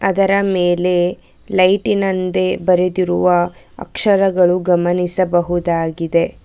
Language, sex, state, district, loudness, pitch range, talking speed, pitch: Kannada, female, Karnataka, Bangalore, -16 LUFS, 175-190 Hz, 55 wpm, 180 Hz